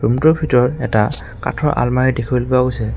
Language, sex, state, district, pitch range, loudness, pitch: Assamese, male, Assam, Kamrup Metropolitan, 120-130 Hz, -16 LUFS, 125 Hz